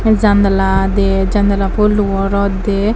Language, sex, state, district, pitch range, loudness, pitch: Chakma, female, Tripura, Dhalai, 195-210 Hz, -14 LUFS, 200 Hz